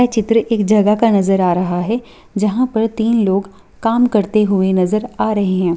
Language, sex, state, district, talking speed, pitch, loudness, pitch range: Hindi, female, Bihar, Purnia, 210 wpm, 210 Hz, -15 LUFS, 195-225 Hz